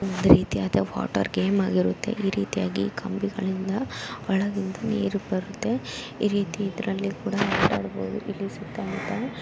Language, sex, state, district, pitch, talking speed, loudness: Kannada, female, Karnataka, Belgaum, 195 Hz, 125 wpm, -26 LUFS